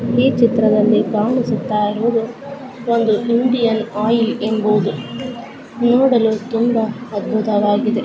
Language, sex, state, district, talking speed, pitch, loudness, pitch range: Kannada, female, Karnataka, Dharwad, 90 wpm, 230 Hz, -17 LUFS, 215-240 Hz